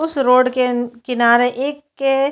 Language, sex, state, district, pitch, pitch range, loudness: Hindi, female, Uttarakhand, Tehri Garhwal, 255 Hz, 245-275 Hz, -17 LUFS